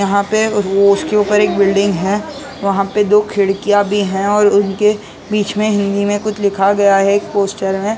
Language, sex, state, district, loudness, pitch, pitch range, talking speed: Hindi, male, Maharashtra, Mumbai Suburban, -14 LUFS, 200 Hz, 200-210 Hz, 195 wpm